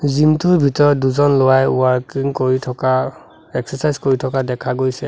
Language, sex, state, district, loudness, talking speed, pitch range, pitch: Assamese, male, Assam, Sonitpur, -16 LUFS, 155 wpm, 130-145 Hz, 135 Hz